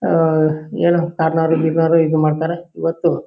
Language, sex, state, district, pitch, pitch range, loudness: Kannada, male, Karnataka, Shimoga, 165 Hz, 160-170 Hz, -17 LUFS